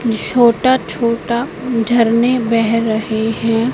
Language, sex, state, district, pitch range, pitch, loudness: Hindi, female, Madhya Pradesh, Katni, 225-245 Hz, 230 Hz, -15 LUFS